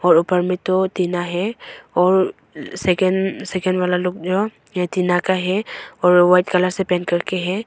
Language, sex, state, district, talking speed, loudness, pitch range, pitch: Hindi, female, Arunachal Pradesh, Longding, 190 wpm, -19 LUFS, 180-185 Hz, 180 Hz